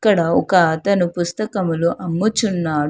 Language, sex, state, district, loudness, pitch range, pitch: Telugu, female, Telangana, Hyderabad, -18 LUFS, 165-200 Hz, 175 Hz